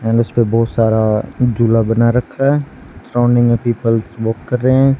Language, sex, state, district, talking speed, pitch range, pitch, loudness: Hindi, male, Haryana, Charkhi Dadri, 180 wpm, 115-125 Hz, 115 Hz, -15 LUFS